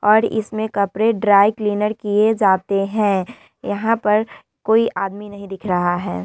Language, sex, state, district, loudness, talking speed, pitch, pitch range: Hindi, female, Bihar, Vaishali, -18 LUFS, 165 wpm, 210 Hz, 195-220 Hz